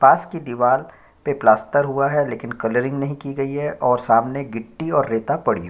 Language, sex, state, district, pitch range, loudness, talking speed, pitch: Hindi, male, Chhattisgarh, Korba, 115-140 Hz, -20 LUFS, 230 wpm, 135 Hz